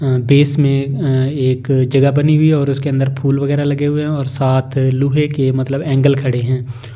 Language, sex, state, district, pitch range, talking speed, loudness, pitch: Hindi, male, Delhi, New Delhi, 130-145 Hz, 215 wpm, -15 LUFS, 135 Hz